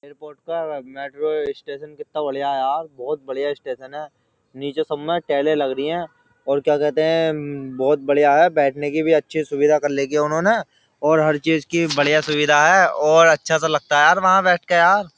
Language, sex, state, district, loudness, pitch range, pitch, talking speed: Hindi, male, Uttar Pradesh, Jyotiba Phule Nagar, -18 LUFS, 145-165 Hz, 150 Hz, 200 wpm